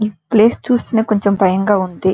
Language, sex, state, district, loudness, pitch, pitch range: Telugu, female, Andhra Pradesh, Krishna, -15 LUFS, 205 Hz, 190-220 Hz